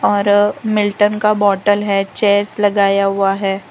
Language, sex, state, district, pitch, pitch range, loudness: Hindi, female, Gujarat, Valsad, 205 Hz, 200-205 Hz, -15 LUFS